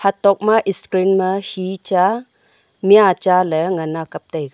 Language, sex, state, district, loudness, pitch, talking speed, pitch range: Wancho, female, Arunachal Pradesh, Longding, -17 LUFS, 190 Hz, 170 wpm, 180-200 Hz